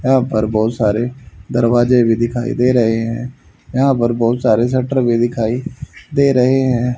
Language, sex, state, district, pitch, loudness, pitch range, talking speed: Hindi, male, Haryana, Jhajjar, 120 Hz, -15 LUFS, 115-130 Hz, 170 wpm